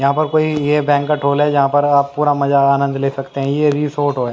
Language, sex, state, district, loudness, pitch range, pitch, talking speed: Hindi, male, Haryana, Jhajjar, -15 LUFS, 140-150 Hz, 145 Hz, 275 wpm